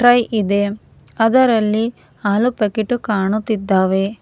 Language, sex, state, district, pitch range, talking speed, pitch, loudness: Kannada, female, Karnataka, Bangalore, 205-230 Hz, 85 wpm, 215 Hz, -17 LUFS